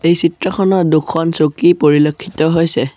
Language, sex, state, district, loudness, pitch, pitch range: Assamese, male, Assam, Sonitpur, -13 LUFS, 165 Hz, 155-175 Hz